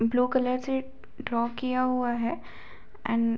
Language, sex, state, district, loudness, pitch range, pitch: Hindi, female, Bihar, Saharsa, -28 LUFS, 235-260 Hz, 250 Hz